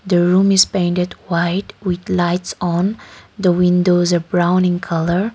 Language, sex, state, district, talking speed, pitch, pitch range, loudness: English, female, Nagaland, Kohima, 155 wpm, 180 Hz, 175-190 Hz, -16 LUFS